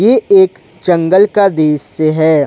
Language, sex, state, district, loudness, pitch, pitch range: Hindi, male, Jharkhand, Ranchi, -11 LUFS, 165 Hz, 155-200 Hz